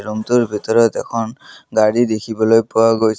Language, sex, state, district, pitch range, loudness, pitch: Assamese, male, Assam, Kamrup Metropolitan, 110-115 Hz, -16 LUFS, 110 Hz